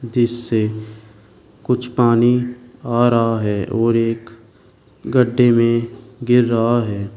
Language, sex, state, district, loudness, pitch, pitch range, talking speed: Hindi, male, Uttar Pradesh, Shamli, -17 LUFS, 115 Hz, 110-125 Hz, 110 wpm